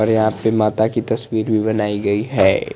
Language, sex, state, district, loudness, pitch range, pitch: Hindi, male, Chandigarh, Chandigarh, -18 LUFS, 105-110 Hz, 110 Hz